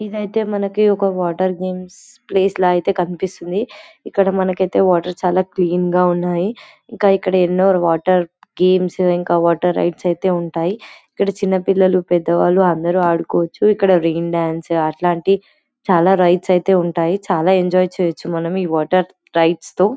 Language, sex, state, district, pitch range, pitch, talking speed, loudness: Telugu, female, Telangana, Karimnagar, 175-190 Hz, 185 Hz, 145 wpm, -17 LUFS